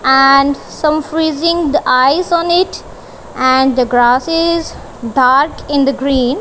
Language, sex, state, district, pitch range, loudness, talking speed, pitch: English, female, Punjab, Kapurthala, 260-320 Hz, -12 LUFS, 130 wpm, 275 Hz